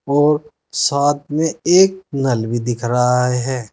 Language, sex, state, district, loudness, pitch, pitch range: Hindi, male, Uttar Pradesh, Saharanpur, -17 LUFS, 140 Hz, 125-150 Hz